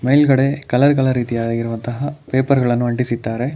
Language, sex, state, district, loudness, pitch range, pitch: Kannada, male, Karnataka, Bangalore, -17 LUFS, 120-140 Hz, 125 Hz